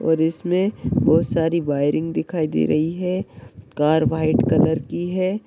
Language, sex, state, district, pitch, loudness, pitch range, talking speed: Hindi, male, Uttar Pradesh, Deoria, 160 Hz, -20 LUFS, 150-175 Hz, 155 wpm